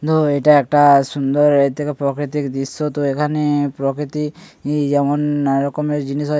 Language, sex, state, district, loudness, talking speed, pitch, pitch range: Bengali, male, West Bengal, Paschim Medinipur, -17 LUFS, 150 wpm, 145 Hz, 140-150 Hz